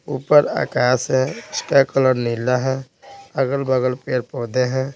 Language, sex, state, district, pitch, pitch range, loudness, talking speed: Hindi, male, Bihar, Patna, 130 Hz, 125-135 Hz, -19 LUFS, 120 wpm